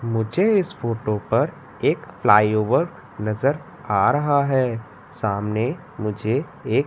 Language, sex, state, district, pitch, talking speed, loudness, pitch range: Hindi, male, Madhya Pradesh, Katni, 115 Hz, 120 wpm, -22 LUFS, 105-145 Hz